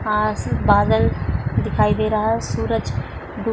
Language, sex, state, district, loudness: Hindi, female, Uttar Pradesh, Budaun, -20 LUFS